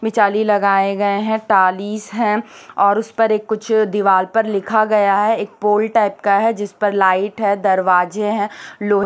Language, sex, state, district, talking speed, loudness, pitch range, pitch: Hindi, female, Chhattisgarh, Raipur, 180 wpm, -16 LUFS, 200-215 Hz, 205 Hz